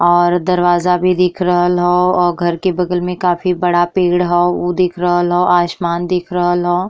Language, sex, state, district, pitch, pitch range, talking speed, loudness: Bhojpuri, female, Uttar Pradesh, Ghazipur, 175 Hz, 175-180 Hz, 200 wpm, -14 LUFS